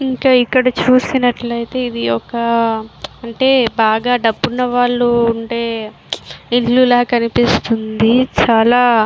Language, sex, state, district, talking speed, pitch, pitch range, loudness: Telugu, female, Andhra Pradesh, Visakhapatnam, 100 wpm, 240 Hz, 230-250 Hz, -14 LUFS